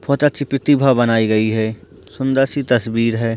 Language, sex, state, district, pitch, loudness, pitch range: Hindi, male, Bihar, Purnia, 125 Hz, -17 LUFS, 115-140 Hz